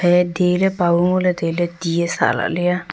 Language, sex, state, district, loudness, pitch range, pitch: Wancho, female, Arunachal Pradesh, Longding, -18 LUFS, 170-180 Hz, 175 Hz